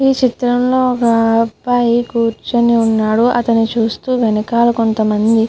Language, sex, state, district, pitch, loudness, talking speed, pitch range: Telugu, female, Andhra Pradesh, Guntur, 235 Hz, -14 LUFS, 130 wpm, 225-245 Hz